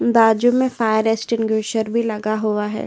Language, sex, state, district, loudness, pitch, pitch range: Hindi, female, Uttar Pradesh, Hamirpur, -18 LUFS, 225 Hz, 215-230 Hz